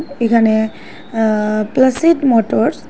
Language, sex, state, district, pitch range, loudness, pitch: Bengali, female, Assam, Hailakandi, 220-260 Hz, -14 LUFS, 230 Hz